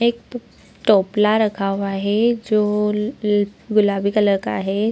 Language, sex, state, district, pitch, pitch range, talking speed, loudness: Hindi, female, Bihar, Samastipur, 210 Hz, 200-220 Hz, 145 wpm, -19 LUFS